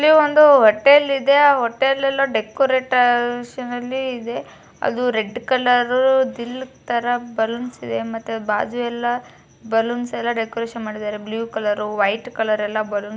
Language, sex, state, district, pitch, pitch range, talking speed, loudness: Kannada, female, Karnataka, Bijapur, 240 Hz, 220-260 Hz, 120 wpm, -19 LUFS